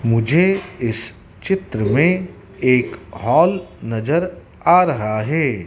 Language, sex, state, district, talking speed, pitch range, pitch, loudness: Hindi, male, Madhya Pradesh, Dhar, 105 wpm, 110-175 Hz, 125 Hz, -18 LUFS